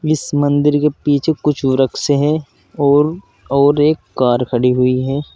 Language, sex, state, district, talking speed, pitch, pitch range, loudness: Hindi, male, Uttar Pradesh, Saharanpur, 155 wpm, 145 Hz, 130-150 Hz, -15 LUFS